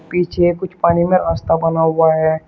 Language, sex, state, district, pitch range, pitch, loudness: Hindi, male, Uttar Pradesh, Shamli, 160-175 Hz, 165 Hz, -15 LUFS